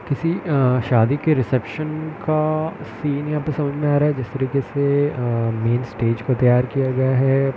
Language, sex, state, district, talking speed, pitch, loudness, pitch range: Hindi, male, Bihar, East Champaran, 200 wpm, 140 Hz, -20 LUFS, 125-150 Hz